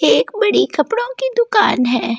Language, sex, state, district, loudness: Hindi, female, Delhi, New Delhi, -16 LUFS